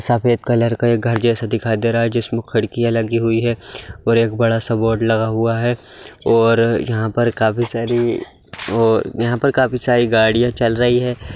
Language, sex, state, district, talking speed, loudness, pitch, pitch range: Hindi, male, Bihar, Sitamarhi, 195 wpm, -17 LUFS, 115 Hz, 115-120 Hz